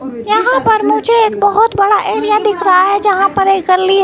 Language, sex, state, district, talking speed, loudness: Hindi, female, Himachal Pradesh, Shimla, 210 wpm, -11 LUFS